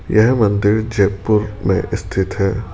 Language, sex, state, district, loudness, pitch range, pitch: Hindi, male, Rajasthan, Jaipur, -17 LUFS, 95-110 Hz, 105 Hz